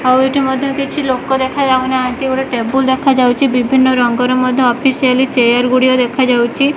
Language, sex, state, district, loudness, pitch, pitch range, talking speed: Odia, female, Odisha, Malkangiri, -13 LUFS, 260 Hz, 250-265 Hz, 170 wpm